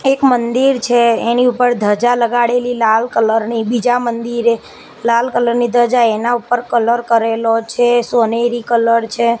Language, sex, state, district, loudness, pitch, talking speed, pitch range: Gujarati, female, Gujarat, Gandhinagar, -14 LUFS, 235 Hz, 155 wpm, 230-245 Hz